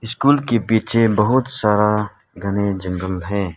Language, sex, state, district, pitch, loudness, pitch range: Hindi, male, Arunachal Pradesh, Lower Dibang Valley, 105 Hz, -18 LUFS, 100-115 Hz